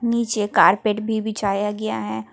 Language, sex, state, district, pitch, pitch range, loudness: Hindi, female, Jharkhand, Palamu, 210 Hz, 200-220 Hz, -20 LUFS